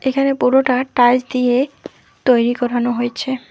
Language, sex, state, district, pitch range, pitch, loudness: Bengali, female, West Bengal, Alipurduar, 245-265 Hz, 250 Hz, -16 LUFS